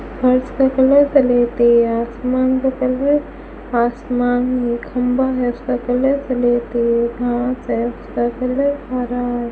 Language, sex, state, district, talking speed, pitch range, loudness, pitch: Hindi, female, Rajasthan, Bikaner, 140 wpm, 240-260 Hz, -17 LUFS, 250 Hz